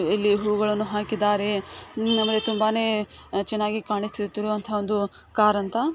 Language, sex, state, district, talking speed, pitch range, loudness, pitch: Kannada, female, Karnataka, Dakshina Kannada, 100 wpm, 205-220 Hz, -24 LUFS, 210 Hz